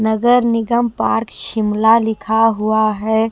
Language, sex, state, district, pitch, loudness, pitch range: Hindi, female, Himachal Pradesh, Shimla, 220 Hz, -15 LUFS, 220-230 Hz